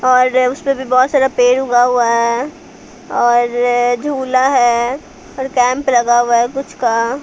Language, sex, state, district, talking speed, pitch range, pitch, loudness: Hindi, female, Bihar, Patna, 155 wpm, 240-265 Hz, 250 Hz, -14 LUFS